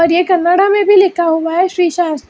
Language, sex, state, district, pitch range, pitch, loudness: Hindi, female, Karnataka, Bangalore, 335-375 Hz, 350 Hz, -12 LUFS